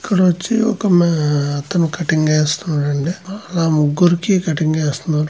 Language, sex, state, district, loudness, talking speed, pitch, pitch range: Telugu, male, Andhra Pradesh, Chittoor, -17 LUFS, 100 wpm, 165 Hz, 155-185 Hz